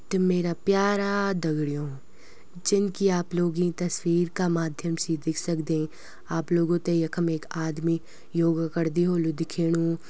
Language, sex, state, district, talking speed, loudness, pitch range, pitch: Garhwali, female, Uttarakhand, Uttarkashi, 140 wpm, -26 LUFS, 165-175 Hz, 170 Hz